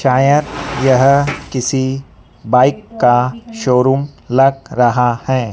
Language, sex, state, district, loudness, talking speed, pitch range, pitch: Hindi, female, Madhya Pradesh, Dhar, -14 LUFS, 100 wpm, 125-140 Hz, 130 Hz